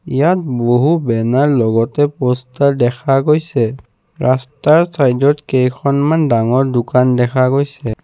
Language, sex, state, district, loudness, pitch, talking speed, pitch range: Assamese, male, Assam, Kamrup Metropolitan, -14 LUFS, 130 Hz, 105 wpm, 125-145 Hz